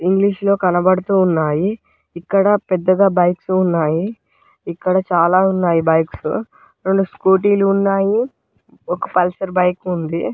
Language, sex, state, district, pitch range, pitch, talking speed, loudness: Telugu, male, Andhra Pradesh, Guntur, 175-195 Hz, 185 Hz, 115 wpm, -16 LUFS